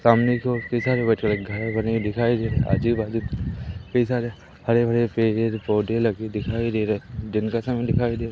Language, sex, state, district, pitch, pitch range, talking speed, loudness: Hindi, male, Madhya Pradesh, Umaria, 115 Hz, 110-120 Hz, 185 wpm, -23 LUFS